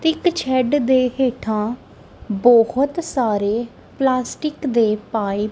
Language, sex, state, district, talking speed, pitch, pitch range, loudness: Punjabi, female, Punjab, Kapurthala, 110 wpm, 250 Hz, 220-270 Hz, -19 LUFS